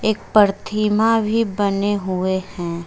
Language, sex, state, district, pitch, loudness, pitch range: Hindi, female, Uttar Pradesh, Lucknow, 205 Hz, -19 LUFS, 190-215 Hz